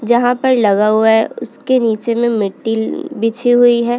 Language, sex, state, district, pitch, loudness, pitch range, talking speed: Hindi, female, Uttarakhand, Uttarkashi, 230 Hz, -14 LUFS, 220-245 Hz, 195 wpm